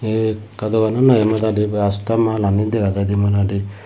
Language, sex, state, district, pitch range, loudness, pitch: Chakma, male, Tripura, Dhalai, 100-110 Hz, -18 LUFS, 105 Hz